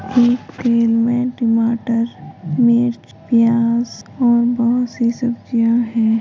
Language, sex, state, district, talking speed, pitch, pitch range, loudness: Hindi, female, Uttar Pradesh, Hamirpur, 105 wpm, 235 Hz, 230-240 Hz, -17 LUFS